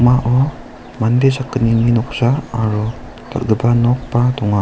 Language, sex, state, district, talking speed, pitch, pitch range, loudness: Garo, male, Meghalaya, South Garo Hills, 90 wpm, 120 Hz, 115-125 Hz, -16 LUFS